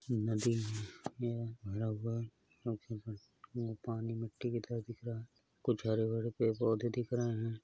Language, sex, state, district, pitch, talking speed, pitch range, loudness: Hindi, male, Uttar Pradesh, Hamirpur, 115 Hz, 120 wpm, 110-120 Hz, -38 LUFS